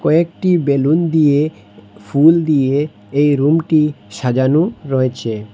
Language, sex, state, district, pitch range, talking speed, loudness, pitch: Bengali, male, Assam, Hailakandi, 130-160 Hz, 95 wpm, -15 LUFS, 145 Hz